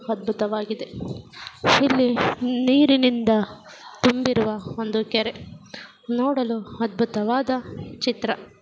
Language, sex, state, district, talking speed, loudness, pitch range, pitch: Kannada, female, Karnataka, Gulbarga, 65 wpm, -22 LUFS, 220-255 Hz, 235 Hz